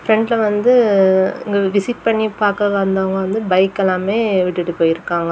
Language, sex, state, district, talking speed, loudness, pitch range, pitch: Tamil, female, Tamil Nadu, Kanyakumari, 135 wpm, -16 LUFS, 190-215 Hz, 195 Hz